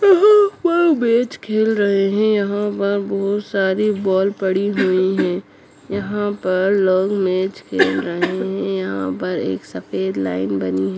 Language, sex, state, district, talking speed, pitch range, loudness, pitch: Kumaoni, female, Uttarakhand, Uttarkashi, 155 wpm, 175-210 Hz, -18 LUFS, 195 Hz